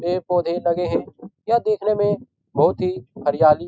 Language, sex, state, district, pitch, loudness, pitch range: Hindi, male, Bihar, Jahanabad, 180 Hz, -21 LUFS, 170-205 Hz